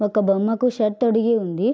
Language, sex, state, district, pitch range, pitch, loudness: Telugu, female, Andhra Pradesh, Srikakulam, 210-235 Hz, 220 Hz, -20 LUFS